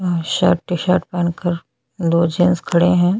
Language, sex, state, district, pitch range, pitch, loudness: Hindi, female, Chhattisgarh, Bastar, 170-180 Hz, 175 Hz, -18 LUFS